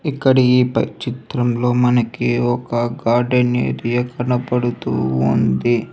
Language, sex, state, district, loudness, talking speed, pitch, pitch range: Telugu, female, Telangana, Hyderabad, -18 LUFS, 90 wpm, 120 Hz, 120-125 Hz